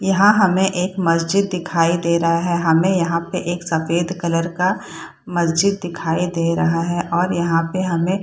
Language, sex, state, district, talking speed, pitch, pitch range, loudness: Hindi, female, Bihar, Saharsa, 175 wpm, 175 Hz, 170-185 Hz, -18 LUFS